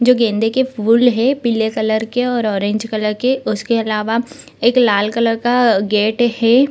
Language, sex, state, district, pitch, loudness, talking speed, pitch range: Hindi, female, Bihar, Samastipur, 230 Hz, -16 LUFS, 180 wpm, 220-245 Hz